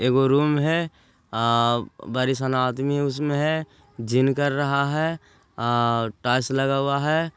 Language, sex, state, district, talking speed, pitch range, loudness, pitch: Hindi, male, Bihar, Jahanabad, 145 wpm, 120-145 Hz, -23 LUFS, 135 Hz